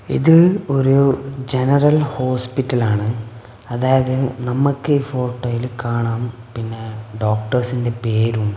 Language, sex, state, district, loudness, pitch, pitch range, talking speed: Malayalam, male, Kerala, Kasaragod, -18 LUFS, 125 Hz, 115-135 Hz, 75 wpm